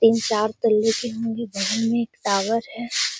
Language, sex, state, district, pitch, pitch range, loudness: Hindi, female, Bihar, Gaya, 225 Hz, 215-230 Hz, -22 LUFS